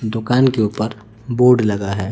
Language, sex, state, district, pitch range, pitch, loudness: Hindi, male, Chhattisgarh, Raipur, 105-125 Hz, 110 Hz, -17 LUFS